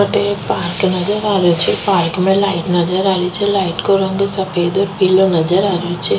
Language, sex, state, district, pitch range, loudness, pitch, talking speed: Rajasthani, female, Rajasthan, Nagaur, 175-195 Hz, -15 LUFS, 190 Hz, 230 wpm